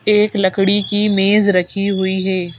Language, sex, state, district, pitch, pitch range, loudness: Hindi, female, Madhya Pradesh, Bhopal, 195 Hz, 190-205 Hz, -15 LUFS